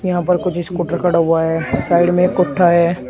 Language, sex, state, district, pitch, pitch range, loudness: Hindi, male, Uttar Pradesh, Shamli, 175 Hz, 170-180 Hz, -15 LUFS